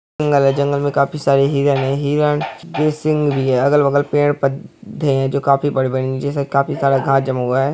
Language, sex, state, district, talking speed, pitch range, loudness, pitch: Hindi, male, Uttar Pradesh, Hamirpur, 230 wpm, 135-145 Hz, -17 LUFS, 140 Hz